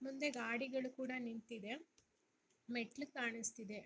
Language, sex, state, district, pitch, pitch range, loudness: Kannada, male, Karnataka, Bellary, 240 Hz, 230-265 Hz, -45 LUFS